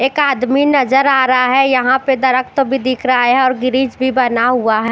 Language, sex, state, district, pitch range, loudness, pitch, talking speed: Hindi, female, Chandigarh, Chandigarh, 255-270 Hz, -13 LUFS, 260 Hz, 205 wpm